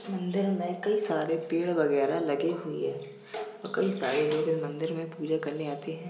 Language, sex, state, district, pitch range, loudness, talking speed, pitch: Hindi, male, Uttar Pradesh, Jalaun, 150-175 Hz, -30 LUFS, 195 wpm, 160 Hz